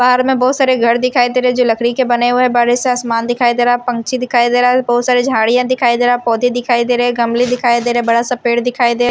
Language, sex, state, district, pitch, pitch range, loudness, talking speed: Hindi, female, Himachal Pradesh, Shimla, 245 Hz, 240-250 Hz, -13 LUFS, 310 wpm